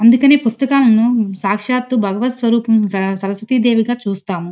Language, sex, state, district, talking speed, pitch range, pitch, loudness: Telugu, female, Andhra Pradesh, Srikakulam, 120 wpm, 200-245 Hz, 230 Hz, -15 LUFS